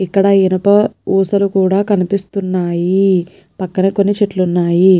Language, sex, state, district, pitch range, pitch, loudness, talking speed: Telugu, female, Telangana, Nalgonda, 185-200 Hz, 190 Hz, -14 LUFS, 95 wpm